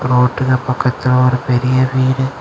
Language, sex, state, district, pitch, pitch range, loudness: Tamil, male, Tamil Nadu, Kanyakumari, 130 Hz, 125-130 Hz, -15 LUFS